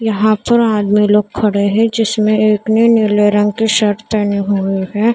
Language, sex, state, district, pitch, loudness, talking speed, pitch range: Hindi, female, Maharashtra, Mumbai Suburban, 215 Hz, -13 LUFS, 185 wpm, 205-220 Hz